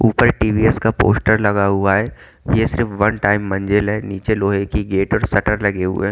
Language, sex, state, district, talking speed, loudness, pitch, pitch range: Hindi, male, Haryana, Charkhi Dadri, 205 wpm, -17 LUFS, 105 Hz, 100-110 Hz